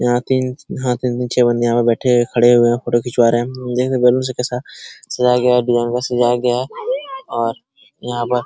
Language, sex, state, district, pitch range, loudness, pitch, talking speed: Hindi, male, Bihar, Araria, 120-125 Hz, -17 LUFS, 125 Hz, 275 wpm